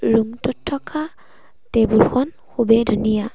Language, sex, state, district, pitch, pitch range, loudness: Assamese, female, Assam, Sonitpur, 235 Hz, 225-275 Hz, -19 LUFS